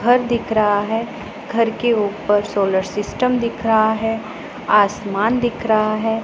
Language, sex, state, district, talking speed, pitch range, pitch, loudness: Hindi, female, Punjab, Pathankot, 155 wpm, 210-235 Hz, 220 Hz, -18 LUFS